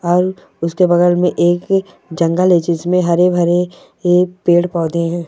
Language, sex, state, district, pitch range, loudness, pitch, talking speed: Hindi, male, Goa, North and South Goa, 170-180 Hz, -15 LUFS, 175 Hz, 150 wpm